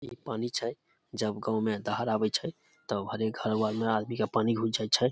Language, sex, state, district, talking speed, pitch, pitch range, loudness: Maithili, male, Bihar, Samastipur, 220 wpm, 110 Hz, 110-115 Hz, -31 LUFS